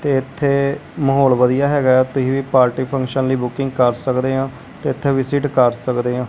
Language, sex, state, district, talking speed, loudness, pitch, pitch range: Punjabi, male, Punjab, Kapurthala, 190 wpm, -17 LUFS, 130 Hz, 125-135 Hz